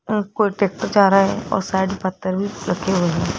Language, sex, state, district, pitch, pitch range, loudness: Hindi, female, Rajasthan, Jaipur, 190 Hz, 190-200 Hz, -19 LUFS